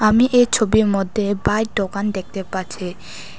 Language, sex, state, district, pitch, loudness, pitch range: Bengali, female, Tripura, West Tripura, 205 Hz, -19 LUFS, 195-220 Hz